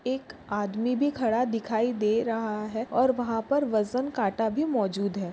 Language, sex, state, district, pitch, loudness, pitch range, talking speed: Hindi, female, Maharashtra, Pune, 225 Hz, -27 LUFS, 215-255 Hz, 180 wpm